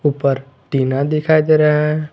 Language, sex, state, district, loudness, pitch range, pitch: Hindi, male, Jharkhand, Garhwa, -16 LUFS, 135-155 Hz, 150 Hz